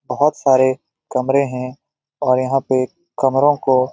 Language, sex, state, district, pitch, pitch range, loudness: Hindi, male, Bihar, Lakhisarai, 130 Hz, 130-140 Hz, -17 LUFS